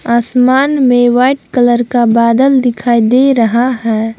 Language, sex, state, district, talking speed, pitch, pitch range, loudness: Hindi, female, Jharkhand, Palamu, 145 wpm, 245 Hz, 235-255 Hz, -10 LUFS